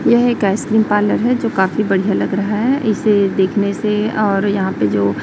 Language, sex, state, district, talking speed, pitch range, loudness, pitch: Hindi, female, Chhattisgarh, Raipur, 205 wpm, 195-220 Hz, -16 LUFS, 205 Hz